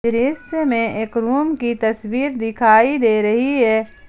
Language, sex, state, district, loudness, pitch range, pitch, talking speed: Hindi, female, Jharkhand, Ranchi, -17 LUFS, 220-265 Hz, 230 Hz, 145 wpm